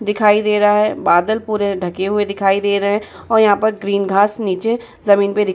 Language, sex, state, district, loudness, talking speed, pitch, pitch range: Hindi, female, Uttar Pradesh, Muzaffarnagar, -16 LUFS, 240 wpm, 205 Hz, 200-215 Hz